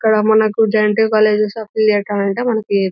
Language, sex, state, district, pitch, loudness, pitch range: Telugu, female, Telangana, Nalgonda, 215 Hz, -15 LUFS, 210-220 Hz